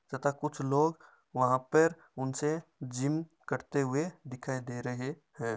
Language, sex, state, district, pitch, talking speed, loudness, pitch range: Marwari, male, Rajasthan, Nagaur, 140 Hz, 140 wpm, -33 LUFS, 130-155 Hz